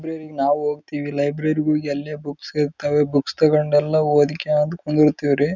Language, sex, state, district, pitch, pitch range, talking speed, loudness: Kannada, male, Karnataka, Raichur, 150 Hz, 145-150 Hz, 75 wpm, -20 LUFS